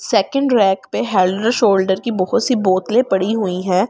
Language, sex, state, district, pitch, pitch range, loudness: Hindi, female, Delhi, New Delhi, 205 Hz, 190-240 Hz, -16 LUFS